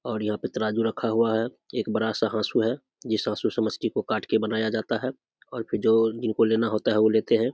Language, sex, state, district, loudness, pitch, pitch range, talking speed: Hindi, male, Bihar, Samastipur, -25 LUFS, 110 Hz, 110-115 Hz, 255 wpm